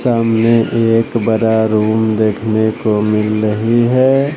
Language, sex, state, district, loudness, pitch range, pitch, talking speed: Hindi, male, Bihar, West Champaran, -13 LUFS, 110-115 Hz, 110 Hz, 125 wpm